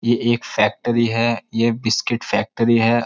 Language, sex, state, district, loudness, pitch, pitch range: Hindi, male, Uttar Pradesh, Jyotiba Phule Nagar, -19 LUFS, 115 Hz, 115-120 Hz